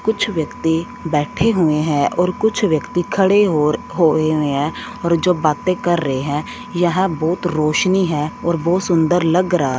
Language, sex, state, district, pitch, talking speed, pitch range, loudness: Hindi, female, Punjab, Fazilka, 170 Hz, 180 wpm, 155-185 Hz, -17 LUFS